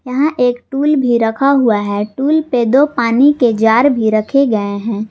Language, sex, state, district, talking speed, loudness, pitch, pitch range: Hindi, female, Jharkhand, Garhwa, 200 wpm, -13 LUFS, 245 Hz, 220-275 Hz